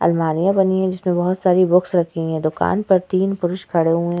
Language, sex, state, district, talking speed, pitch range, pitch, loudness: Hindi, female, Uttar Pradesh, Etah, 230 wpm, 170-190 Hz, 180 Hz, -18 LUFS